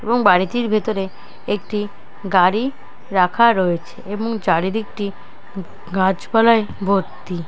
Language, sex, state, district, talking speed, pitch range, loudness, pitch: Bengali, male, West Bengal, Dakshin Dinajpur, 95 wpm, 185-220 Hz, -19 LUFS, 200 Hz